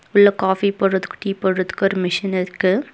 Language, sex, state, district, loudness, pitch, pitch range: Tamil, female, Tamil Nadu, Nilgiris, -19 LUFS, 190 Hz, 185-200 Hz